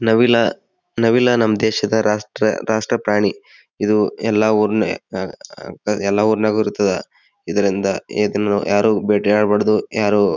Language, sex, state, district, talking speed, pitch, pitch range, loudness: Kannada, male, Karnataka, Bijapur, 120 wpm, 105 Hz, 105-110 Hz, -17 LUFS